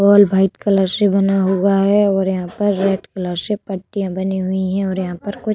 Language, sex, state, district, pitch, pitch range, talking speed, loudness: Hindi, female, Uttar Pradesh, Budaun, 195 Hz, 190-200 Hz, 240 wpm, -17 LUFS